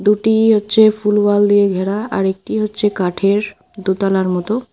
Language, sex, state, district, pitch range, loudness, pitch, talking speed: Bengali, female, West Bengal, Alipurduar, 195-215 Hz, -15 LUFS, 205 Hz, 150 wpm